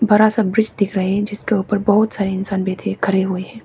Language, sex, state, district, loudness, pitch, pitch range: Hindi, female, Arunachal Pradesh, Papum Pare, -18 LUFS, 205 Hz, 190-215 Hz